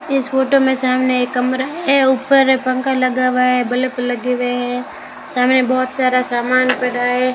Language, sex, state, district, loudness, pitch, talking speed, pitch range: Hindi, female, Rajasthan, Bikaner, -16 LUFS, 255 Hz, 180 wpm, 250-265 Hz